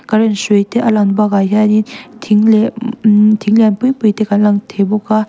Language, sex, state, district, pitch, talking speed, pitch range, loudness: Mizo, female, Mizoram, Aizawl, 215 Hz, 225 wpm, 210-225 Hz, -12 LUFS